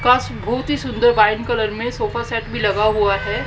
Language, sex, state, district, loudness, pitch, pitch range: Hindi, female, Haryana, Charkhi Dadri, -18 LUFS, 230 Hz, 215-240 Hz